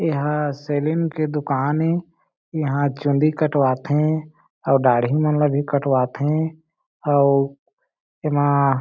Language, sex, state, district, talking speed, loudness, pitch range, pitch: Chhattisgarhi, male, Chhattisgarh, Jashpur, 110 wpm, -20 LUFS, 140-155 Hz, 145 Hz